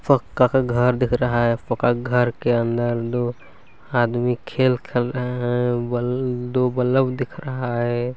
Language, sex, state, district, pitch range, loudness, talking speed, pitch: Hindi, male, Chhattisgarh, Balrampur, 120-125 Hz, -21 LUFS, 145 wpm, 125 Hz